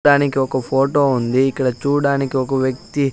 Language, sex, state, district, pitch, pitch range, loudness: Telugu, male, Andhra Pradesh, Sri Satya Sai, 135 Hz, 130-140 Hz, -18 LUFS